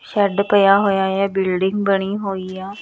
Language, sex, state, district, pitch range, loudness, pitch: Punjabi, female, Punjab, Kapurthala, 190-200 Hz, -18 LUFS, 195 Hz